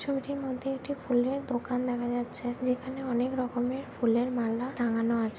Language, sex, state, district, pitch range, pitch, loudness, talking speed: Bengali, female, West Bengal, Jhargram, 240-265 Hz, 250 Hz, -31 LUFS, 155 wpm